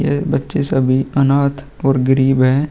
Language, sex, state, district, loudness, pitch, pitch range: Hindi, male, Uttar Pradesh, Muzaffarnagar, -15 LUFS, 135 Hz, 130-140 Hz